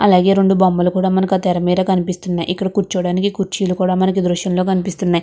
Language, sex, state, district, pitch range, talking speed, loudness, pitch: Telugu, female, Andhra Pradesh, Guntur, 180-190 Hz, 195 wpm, -16 LUFS, 185 Hz